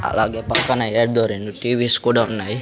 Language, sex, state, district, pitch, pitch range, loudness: Telugu, male, Andhra Pradesh, Sri Satya Sai, 115 Hz, 110-120 Hz, -19 LUFS